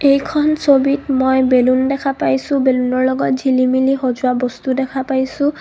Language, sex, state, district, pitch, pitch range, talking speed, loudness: Assamese, female, Assam, Kamrup Metropolitan, 265 Hz, 260-275 Hz, 150 wpm, -16 LUFS